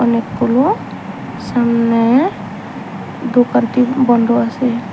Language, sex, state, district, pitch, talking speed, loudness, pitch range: Bengali, female, Tripura, Unakoti, 240 Hz, 60 wpm, -14 LUFS, 235-250 Hz